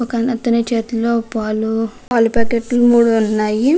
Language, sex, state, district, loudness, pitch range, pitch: Telugu, female, Andhra Pradesh, Krishna, -16 LUFS, 225-240 Hz, 230 Hz